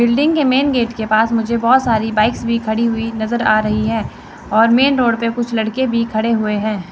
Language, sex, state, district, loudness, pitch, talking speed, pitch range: Hindi, female, Chandigarh, Chandigarh, -16 LUFS, 230 Hz, 235 wpm, 220-240 Hz